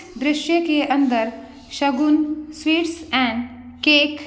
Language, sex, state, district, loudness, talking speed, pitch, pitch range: Hindi, female, Bihar, Begusarai, -19 LUFS, 110 wpm, 295 Hz, 260-305 Hz